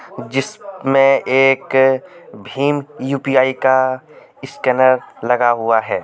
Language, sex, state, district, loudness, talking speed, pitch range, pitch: Hindi, male, Jharkhand, Deoghar, -16 LUFS, 90 wpm, 130-135 Hz, 135 Hz